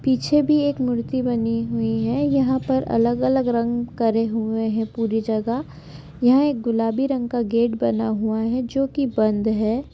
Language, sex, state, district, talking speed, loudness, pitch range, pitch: Hindi, female, Chhattisgarh, Balrampur, 180 wpm, -21 LUFS, 225-260 Hz, 235 Hz